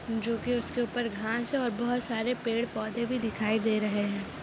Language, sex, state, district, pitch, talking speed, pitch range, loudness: Hindi, female, Jharkhand, Jamtara, 230 Hz, 215 wpm, 220-240 Hz, -30 LUFS